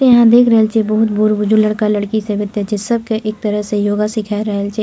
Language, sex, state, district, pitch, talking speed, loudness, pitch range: Maithili, female, Bihar, Purnia, 215 Hz, 250 wpm, -14 LUFS, 210-220 Hz